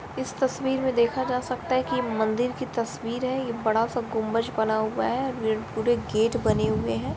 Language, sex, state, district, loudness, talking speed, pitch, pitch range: Hindi, female, Bihar, Lakhisarai, -26 LUFS, 225 wpm, 235 Hz, 220-255 Hz